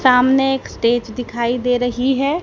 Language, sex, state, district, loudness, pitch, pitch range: Hindi, female, Haryana, Charkhi Dadri, -17 LUFS, 250 Hz, 240-265 Hz